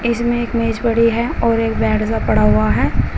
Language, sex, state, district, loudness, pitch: Hindi, female, Uttar Pradesh, Shamli, -16 LUFS, 225 Hz